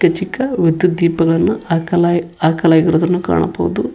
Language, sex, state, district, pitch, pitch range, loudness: Kannada, male, Karnataka, Koppal, 170 Hz, 165-175 Hz, -15 LUFS